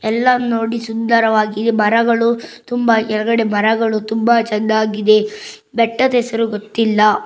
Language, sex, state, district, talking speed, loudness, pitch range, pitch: Kannada, female, Karnataka, Bangalore, 90 wpm, -16 LUFS, 215-230 Hz, 225 Hz